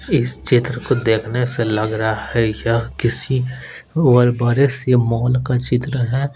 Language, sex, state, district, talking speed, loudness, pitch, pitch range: Hindi, male, Bihar, Patna, 160 wpm, -18 LUFS, 125 Hz, 115-125 Hz